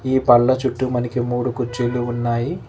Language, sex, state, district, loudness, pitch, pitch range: Telugu, male, Telangana, Hyderabad, -19 LUFS, 125 Hz, 120-130 Hz